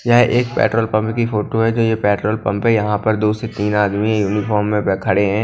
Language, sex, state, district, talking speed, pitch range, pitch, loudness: Hindi, male, Punjab, Kapurthala, 255 wpm, 105-115 Hz, 110 Hz, -17 LUFS